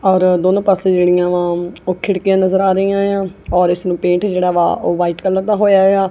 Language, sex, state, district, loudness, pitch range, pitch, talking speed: Punjabi, female, Punjab, Kapurthala, -14 LUFS, 180-195 Hz, 185 Hz, 155 wpm